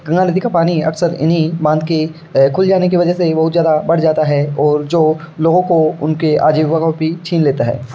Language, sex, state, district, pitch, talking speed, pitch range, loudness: Hindi, male, Uttar Pradesh, Varanasi, 160 Hz, 205 wpm, 155-170 Hz, -14 LUFS